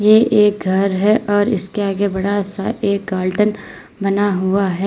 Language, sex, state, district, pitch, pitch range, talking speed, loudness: Hindi, female, Uttar Pradesh, Lalitpur, 200 Hz, 195-210 Hz, 160 wpm, -17 LUFS